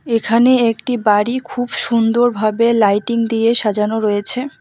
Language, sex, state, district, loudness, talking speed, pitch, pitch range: Bengali, female, West Bengal, Alipurduar, -15 LUFS, 130 wpm, 230 Hz, 215-240 Hz